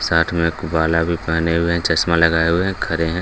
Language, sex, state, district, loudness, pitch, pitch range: Hindi, male, Bihar, Gaya, -18 LUFS, 85 Hz, 80-85 Hz